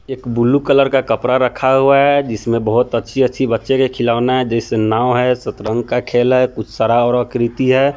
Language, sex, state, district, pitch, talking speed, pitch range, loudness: Hindi, male, Bihar, Sitamarhi, 125 Hz, 190 wpm, 115-130 Hz, -15 LUFS